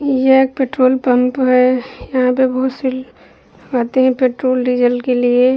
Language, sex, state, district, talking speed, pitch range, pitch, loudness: Hindi, female, Uttar Pradesh, Budaun, 160 wpm, 250-260 Hz, 255 Hz, -15 LUFS